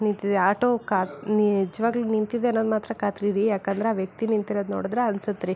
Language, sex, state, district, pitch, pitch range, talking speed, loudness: Kannada, female, Karnataka, Belgaum, 210 Hz, 200-225 Hz, 160 wpm, -24 LUFS